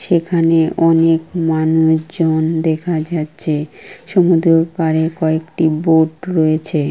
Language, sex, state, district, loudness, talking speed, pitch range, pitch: Bengali, female, West Bengal, Kolkata, -15 LUFS, 85 wpm, 160-165 Hz, 160 Hz